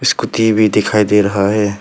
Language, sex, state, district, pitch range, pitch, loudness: Hindi, male, Arunachal Pradesh, Papum Pare, 100-110 Hz, 105 Hz, -13 LUFS